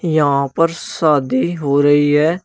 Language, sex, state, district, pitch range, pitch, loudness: Hindi, male, Uttar Pradesh, Shamli, 140-165 Hz, 150 Hz, -15 LUFS